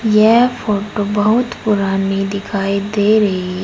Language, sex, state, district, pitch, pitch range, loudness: Hindi, female, Uttar Pradesh, Saharanpur, 205 Hz, 195-215 Hz, -15 LUFS